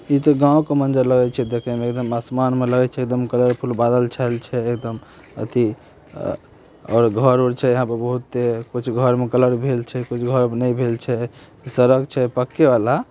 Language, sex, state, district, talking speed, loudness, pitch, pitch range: Maithili, male, Bihar, Samastipur, 190 wpm, -19 LUFS, 125 Hz, 120-130 Hz